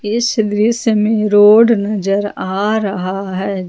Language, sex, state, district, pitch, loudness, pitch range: Hindi, female, Jharkhand, Ranchi, 210 Hz, -14 LUFS, 195-220 Hz